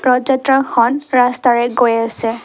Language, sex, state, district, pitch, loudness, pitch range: Assamese, female, Assam, Kamrup Metropolitan, 250 Hz, -14 LUFS, 235-265 Hz